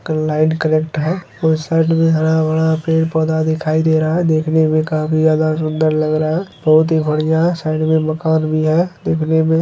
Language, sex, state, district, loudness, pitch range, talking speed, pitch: Hindi, male, Bihar, Araria, -16 LUFS, 155-160 Hz, 205 wpm, 160 Hz